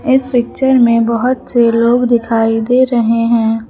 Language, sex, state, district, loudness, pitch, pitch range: Hindi, male, Uttar Pradesh, Lucknow, -12 LUFS, 235 Hz, 230-255 Hz